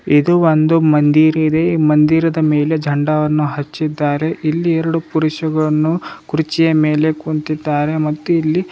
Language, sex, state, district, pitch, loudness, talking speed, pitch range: Kannada, male, Karnataka, Bidar, 155 Hz, -15 LUFS, 115 wpm, 150-160 Hz